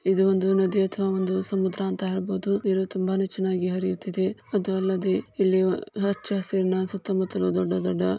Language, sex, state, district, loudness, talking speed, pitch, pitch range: Kannada, female, Karnataka, Chamarajanagar, -25 LUFS, 145 wpm, 190 Hz, 185-195 Hz